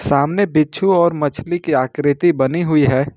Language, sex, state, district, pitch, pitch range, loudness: Hindi, male, Jharkhand, Ranchi, 150 Hz, 140-170 Hz, -16 LUFS